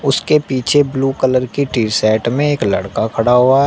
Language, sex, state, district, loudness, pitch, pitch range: Hindi, male, Uttar Pradesh, Shamli, -15 LUFS, 130 Hz, 120-140 Hz